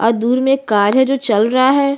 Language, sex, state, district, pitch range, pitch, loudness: Hindi, female, Chhattisgarh, Bastar, 225-270 Hz, 255 Hz, -14 LUFS